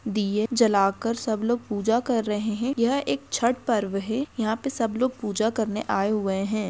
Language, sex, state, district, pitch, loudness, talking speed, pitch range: Hindi, female, Bihar, Purnia, 220 Hz, -25 LUFS, 195 wpm, 210-235 Hz